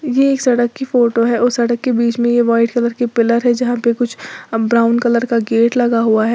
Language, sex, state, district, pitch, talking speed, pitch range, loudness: Hindi, female, Uttar Pradesh, Lalitpur, 235 Hz, 255 wpm, 235-245 Hz, -15 LUFS